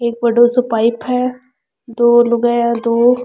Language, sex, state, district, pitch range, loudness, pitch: Rajasthani, female, Rajasthan, Churu, 235-250 Hz, -14 LUFS, 240 Hz